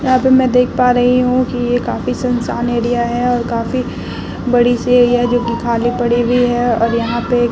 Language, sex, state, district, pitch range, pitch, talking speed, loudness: Hindi, female, Bihar, Vaishali, 240-250 Hz, 245 Hz, 215 wpm, -15 LUFS